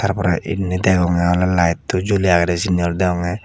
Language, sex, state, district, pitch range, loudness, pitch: Chakma, male, Tripura, Dhalai, 85-95 Hz, -17 LUFS, 90 Hz